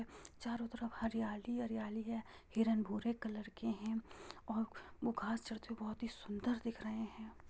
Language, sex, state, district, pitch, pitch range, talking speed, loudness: Hindi, female, Jharkhand, Jamtara, 225 Hz, 220-230 Hz, 160 wpm, -42 LUFS